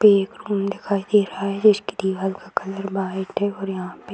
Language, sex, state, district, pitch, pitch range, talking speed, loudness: Hindi, female, Bihar, Jamui, 195 Hz, 190-205 Hz, 245 wpm, -22 LUFS